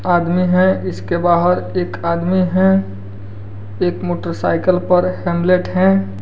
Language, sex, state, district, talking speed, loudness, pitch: Hindi, male, Bihar, West Champaran, 115 wpm, -16 LUFS, 175 Hz